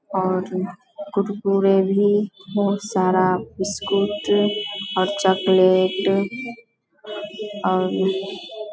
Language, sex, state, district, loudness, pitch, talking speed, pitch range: Hindi, female, Bihar, Vaishali, -21 LUFS, 195 Hz, 80 wpm, 190-205 Hz